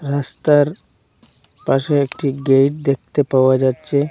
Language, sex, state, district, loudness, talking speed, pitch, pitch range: Bengali, male, Assam, Hailakandi, -17 LUFS, 100 wpm, 140 Hz, 135-145 Hz